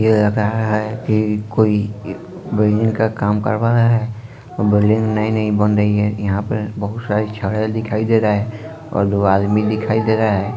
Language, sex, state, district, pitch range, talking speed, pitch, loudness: Hindi, male, Bihar, Sitamarhi, 105-110 Hz, 195 wpm, 110 Hz, -17 LUFS